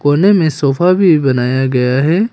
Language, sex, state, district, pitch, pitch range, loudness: Hindi, male, Arunachal Pradesh, Papum Pare, 145 Hz, 130-180 Hz, -12 LUFS